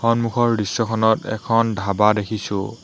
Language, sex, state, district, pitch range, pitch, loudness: Assamese, male, Assam, Hailakandi, 105-115 Hz, 110 Hz, -20 LUFS